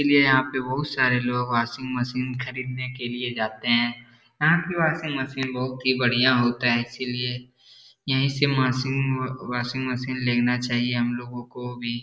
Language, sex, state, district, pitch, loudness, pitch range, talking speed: Hindi, male, Bihar, Darbhanga, 125 Hz, -24 LUFS, 120-130 Hz, 170 wpm